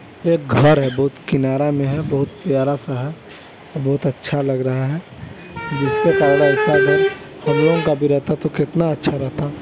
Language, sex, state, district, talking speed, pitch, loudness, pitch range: Hindi, male, Chhattisgarh, Balrampur, 180 wpm, 145 Hz, -18 LUFS, 140-160 Hz